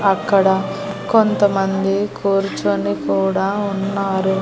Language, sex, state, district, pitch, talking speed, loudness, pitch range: Telugu, female, Andhra Pradesh, Annamaya, 195 Hz, 70 wpm, -18 LUFS, 190-200 Hz